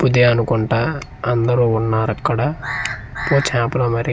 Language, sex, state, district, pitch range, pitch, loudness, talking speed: Telugu, male, Andhra Pradesh, Manyam, 115-130 Hz, 120 Hz, -18 LUFS, 75 wpm